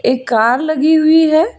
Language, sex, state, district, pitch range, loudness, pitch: Hindi, female, Karnataka, Bangalore, 250-315 Hz, -12 LUFS, 310 Hz